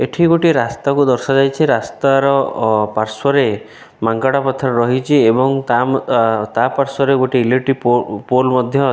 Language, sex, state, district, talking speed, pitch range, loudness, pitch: Odia, male, Odisha, Khordha, 130 wpm, 120-140 Hz, -15 LUFS, 130 Hz